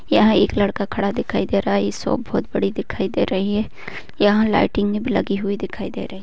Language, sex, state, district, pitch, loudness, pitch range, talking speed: Hindi, female, Bihar, Begusarai, 205 Hz, -20 LUFS, 195-210 Hz, 240 wpm